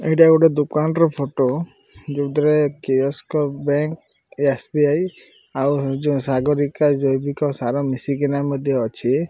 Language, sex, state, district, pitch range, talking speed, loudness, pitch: Odia, male, Odisha, Malkangiri, 135-150 Hz, 105 wpm, -20 LUFS, 145 Hz